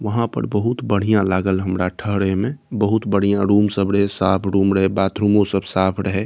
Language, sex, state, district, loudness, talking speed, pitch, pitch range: Maithili, male, Bihar, Saharsa, -19 LUFS, 210 wpm, 100 Hz, 95-105 Hz